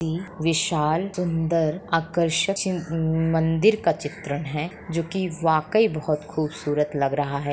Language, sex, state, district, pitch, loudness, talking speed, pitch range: Hindi, female, Bihar, Begusarai, 165 Hz, -24 LUFS, 125 wpm, 150-170 Hz